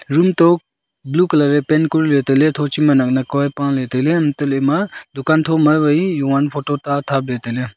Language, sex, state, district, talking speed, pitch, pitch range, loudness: Wancho, male, Arunachal Pradesh, Longding, 195 wpm, 145 Hz, 135-155 Hz, -16 LUFS